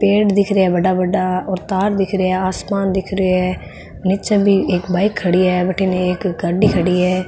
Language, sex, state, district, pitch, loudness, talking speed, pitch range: Marwari, female, Rajasthan, Nagaur, 185 Hz, -17 LUFS, 215 wpm, 180-195 Hz